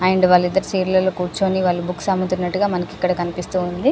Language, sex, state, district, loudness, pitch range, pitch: Telugu, female, Telangana, Karimnagar, -19 LUFS, 180-190 Hz, 185 Hz